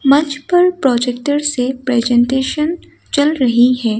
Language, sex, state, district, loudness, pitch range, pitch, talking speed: Hindi, female, Assam, Kamrup Metropolitan, -15 LUFS, 245-295 Hz, 265 Hz, 120 wpm